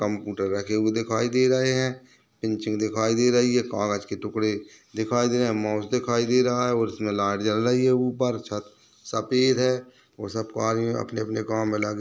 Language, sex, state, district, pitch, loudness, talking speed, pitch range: Hindi, male, Chhattisgarh, Balrampur, 110 Hz, -25 LUFS, 205 wpm, 105-125 Hz